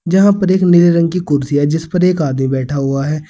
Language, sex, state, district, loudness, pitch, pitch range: Hindi, male, Uttar Pradesh, Saharanpur, -13 LUFS, 160 Hz, 145-180 Hz